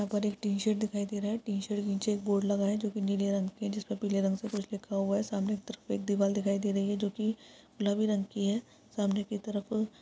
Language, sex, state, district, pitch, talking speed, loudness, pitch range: Hindi, female, Chhattisgarh, Balrampur, 205 Hz, 295 wpm, -32 LUFS, 200-210 Hz